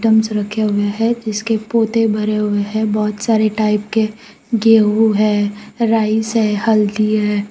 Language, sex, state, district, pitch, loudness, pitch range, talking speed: Hindi, female, Gujarat, Valsad, 215 Hz, -16 LUFS, 210-225 Hz, 145 wpm